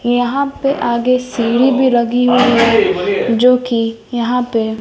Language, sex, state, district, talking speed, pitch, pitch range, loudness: Hindi, female, Bihar, West Champaran, 150 wpm, 245 Hz, 235-255 Hz, -14 LUFS